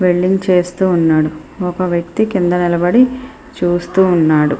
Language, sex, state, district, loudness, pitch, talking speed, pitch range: Telugu, female, Andhra Pradesh, Srikakulam, -14 LUFS, 180 Hz, 115 wpm, 170-190 Hz